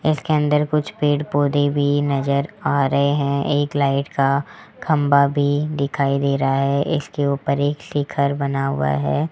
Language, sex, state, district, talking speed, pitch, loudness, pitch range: Hindi, female, Rajasthan, Jaipur, 165 wpm, 145 Hz, -20 LUFS, 140-145 Hz